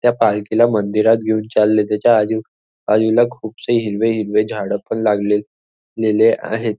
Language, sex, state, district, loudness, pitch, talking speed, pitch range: Marathi, male, Maharashtra, Nagpur, -17 LUFS, 110 Hz, 140 wpm, 105-115 Hz